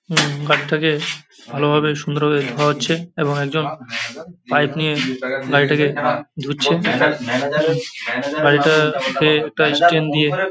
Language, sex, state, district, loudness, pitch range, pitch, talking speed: Bengali, male, West Bengal, Paschim Medinipur, -18 LUFS, 145-155 Hz, 150 Hz, 105 wpm